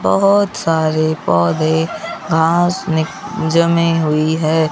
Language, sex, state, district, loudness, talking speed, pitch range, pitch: Hindi, male, Bihar, Kaimur, -15 LUFS, 90 wpm, 155-170 Hz, 160 Hz